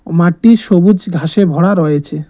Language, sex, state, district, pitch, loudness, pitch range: Bengali, male, West Bengal, Cooch Behar, 175 Hz, -11 LUFS, 160-200 Hz